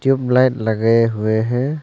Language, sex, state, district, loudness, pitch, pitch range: Hindi, male, Arunachal Pradesh, Longding, -17 LUFS, 120 Hz, 110-130 Hz